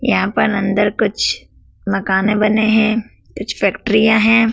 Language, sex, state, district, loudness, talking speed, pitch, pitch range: Hindi, female, Madhya Pradesh, Dhar, -15 LUFS, 130 wpm, 215 Hz, 200-220 Hz